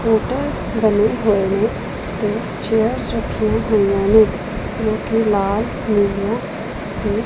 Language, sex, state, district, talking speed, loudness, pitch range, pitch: Punjabi, female, Punjab, Pathankot, 115 wpm, -18 LUFS, 205-220 Hz, 215 Hz